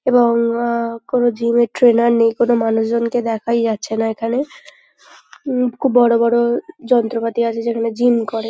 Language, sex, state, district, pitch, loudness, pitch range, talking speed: Bengali, female, West Bengal, North 24 Parganas, 235 Hz, -17 LUFS, 230-240 Hz, 150 wpm